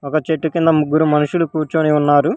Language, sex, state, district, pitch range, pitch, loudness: Telugu, female, Telangana, Hyderabad, 150-160 Hz, 155 Hz, -16 LUFS